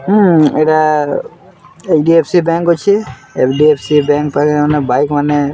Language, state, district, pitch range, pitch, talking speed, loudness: Sambalpuri, Odisha, Sambalpur, 145-170 Hz, 150 Hz, 120 wpm, -12 LUFS